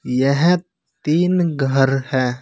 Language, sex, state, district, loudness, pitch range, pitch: Hindi, male, Uttar Pradesh, Saharanpur, -18 LUFS, 135-170 Hz, 140 Hz